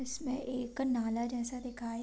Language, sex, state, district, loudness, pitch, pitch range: Hindi, female, Bihar, Sitamarhi, -36 LUFS, 250 Hz, 235-260 Hz